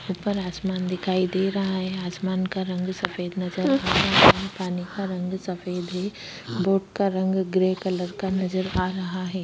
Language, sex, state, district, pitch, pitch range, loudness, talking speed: Hindi, female, Chhattisgarh, Korba, 185 Hz, 185-190 Hz, -24 LUFS, 185 wpm